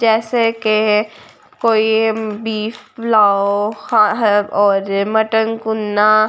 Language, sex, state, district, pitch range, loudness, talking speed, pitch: Hindi, female, Delhi, New Delhi, 210-225 Hz, -16 LUFS, 85 wpm, 215 Hz